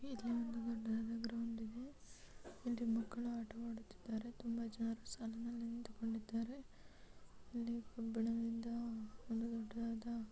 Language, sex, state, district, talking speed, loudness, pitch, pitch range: Kannada, female, Karnataka, Dharwad, 95 wpm, -45 LUFS, 230 Hz, 225-235 Hz